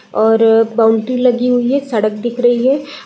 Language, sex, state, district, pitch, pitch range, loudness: Hindi, female, Uttar Pradesh, Deoria, 240 Hz, 225-250 Hz, -13 LUFS